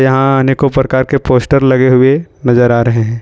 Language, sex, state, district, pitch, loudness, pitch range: Hindi, male, Jharkhand, Ranchi, 130 Hz, -11 LUFS, 125-135 Hz